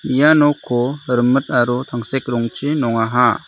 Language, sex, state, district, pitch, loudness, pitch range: Garo, male, Meghalaya, South Garo Hills, 125 Hz, -17 LUFS, 120-135 Hz